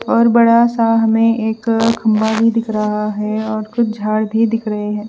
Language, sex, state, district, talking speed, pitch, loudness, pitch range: Hindi, female, Punjab, Fazilka, 200 wpm, 220 Hz, -15 LUFS, 215-230 Hz